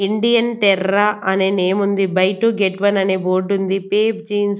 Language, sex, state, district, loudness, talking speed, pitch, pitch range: Telugu, female, Andhra Pradesh, Annamaya, -17 LUFS, 195 wpm, 200 Hz, 190-210 Hz